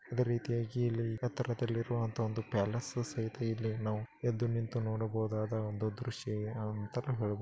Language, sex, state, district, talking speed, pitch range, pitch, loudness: Kannada, male, Karnataka, Bellary, 145 wpm, 110-120 Hz, 115 Hz, -36 LUFS